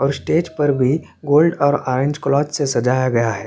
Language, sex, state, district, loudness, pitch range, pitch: Hindi, male, Chhattisgarh, Korba, -18 LUFS, 130-150 Hz, 140 Hz